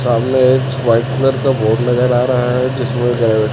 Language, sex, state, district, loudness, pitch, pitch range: Hindi, male, Chhattisgarh, Raipur, -14 LUFS, 125 Hz, 120-130 Hz